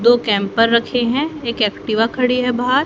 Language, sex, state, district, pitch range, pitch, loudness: Hindi, female, Haryana, Rohtak, 225-250 Hz, 240 Hz, -17 LUFS